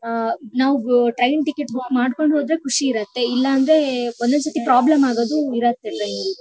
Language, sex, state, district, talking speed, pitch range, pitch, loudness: Kannada, female, Karnataka, Shimoga, 180 wpm, 240-295 Hz, 255 Hz, -19 LUFS